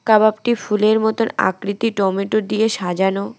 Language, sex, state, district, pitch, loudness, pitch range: Bengali, female, West Bengal, Alipurduar, 215 Hz, -18 LUFS, 195-220 Hz